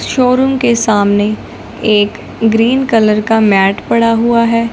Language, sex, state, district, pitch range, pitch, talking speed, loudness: Hindi, male, Punjab, Fazilka, 210-235 Hz, 225 Hz, 150 wpm, -11 LUFS